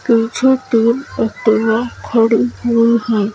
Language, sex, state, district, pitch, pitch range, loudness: Hindi, female, Madhya Pradesh, Bhopal, 230 Hz, 225-240 Hz, -15 LUFS